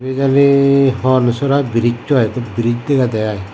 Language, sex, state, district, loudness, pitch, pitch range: Chakma, male, Tripura, Dhalai, -14 LUFS, 130 Hz, 120-140 Hz